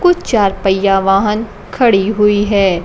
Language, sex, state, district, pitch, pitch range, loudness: Hindi, female, Bihar, Kaimur, 205 Hz, 195-215 Hz, -13 LUFS